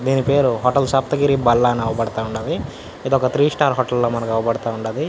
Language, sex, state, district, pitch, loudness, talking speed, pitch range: Telugu, male, Andhra Pradesh, Anantapur, 125 Hz, -18 LUFS, 190 wpm, 115-135 Hz